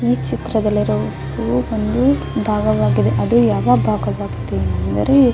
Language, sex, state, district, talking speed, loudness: Kannada, female, Karnataka, Raichur, 100 wpm, -17 LUFS